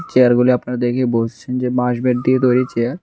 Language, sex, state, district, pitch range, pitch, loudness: Bengali, male, Tripura, West Tripura, 120-125 Hz, 125 Hz, -17 LUFS